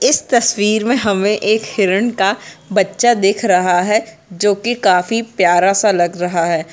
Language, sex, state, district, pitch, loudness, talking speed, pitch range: Hindi, female, Jharkhand, Jamtara, 205 Hz, -15 LUFS, 170 wpm, 180-225 Hz